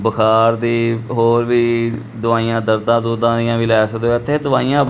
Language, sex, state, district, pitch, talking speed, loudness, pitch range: Punjabi, male, Punjab, Kapurthala, 115 Hz, 170 wpm, -16 LUFS, 115-120 Hz